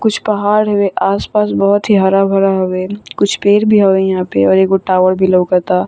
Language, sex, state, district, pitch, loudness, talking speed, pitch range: Bhojpuri, female, Bihar, Saran, 195 Hz, -12 LUFS, 245 wpm, 185-205 Hz